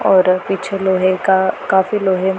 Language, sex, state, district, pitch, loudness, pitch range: Hindi, female, Punjab, Pathankot, 190 Hz, -15 LUFS, 185-195 Hz